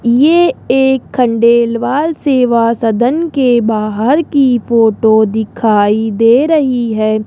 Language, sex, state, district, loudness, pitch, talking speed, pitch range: Hindi, male, Rajasthan, Jaipur, -11 LUFS, 235 Hz, 105 wpm, 220-265 Hz